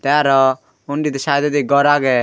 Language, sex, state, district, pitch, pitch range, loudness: Chakma, female, Tripura, Dhalai, 140 Hz, 135-145 Hz, -16 LUFS